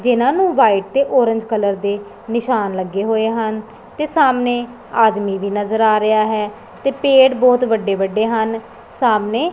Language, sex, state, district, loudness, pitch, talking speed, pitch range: Punjabi, female, Punjab, Pathankot, -16 LUFS, 225 Hz, 165 wpm, 215-245 Hz